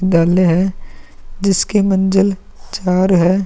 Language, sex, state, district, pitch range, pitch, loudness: Hindi, female, Bihar, Vaishali, 180-195 Hz, 190 Hz, -15 LUFS